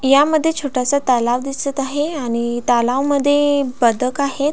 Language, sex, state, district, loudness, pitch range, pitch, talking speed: Marathi, female, Maharashtra, Pune, -17 LUFS, 250-285 Hz, 275 Hz, 120 wpm